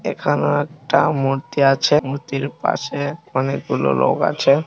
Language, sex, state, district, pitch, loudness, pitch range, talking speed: Bengali, male, West Bengal, Malda, 140 Hz, -19 LUFS, 135-150 Hz, 115 wpm